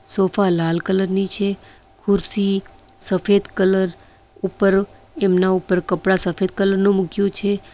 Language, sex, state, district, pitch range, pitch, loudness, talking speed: Gujarati, female, Gujarat, Valsad, 185-200 Hz, 195 Hz, -19 LUFS, 130 wpm